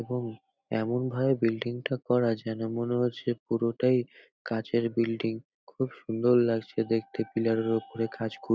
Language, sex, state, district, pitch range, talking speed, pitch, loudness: Bengali, male, West Bengal, North 24 Parganas, 115-120 Hz, 140 wpm, 115 Hz, -29 LUFS